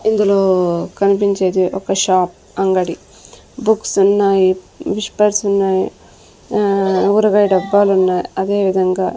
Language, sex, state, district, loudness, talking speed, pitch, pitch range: Telugu, female, Andhra Pradesh, Sri Satya Sai, -15 LUFS, 90 wpm, 195 Hz, 185-200 Hz